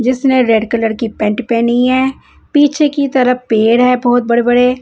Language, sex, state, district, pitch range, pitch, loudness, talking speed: Hindi, female, Punjab, Fazilka, 235-260 Hz, 245 Hz, -12 LUFS, 185 wpm